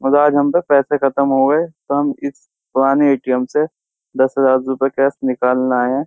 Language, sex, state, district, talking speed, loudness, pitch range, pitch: Hindi, male, Uttar Pradesh, Jyotiba Phule Nagar, 190 wpm, -16 LUFS, 130-145 Hz, 135 Hz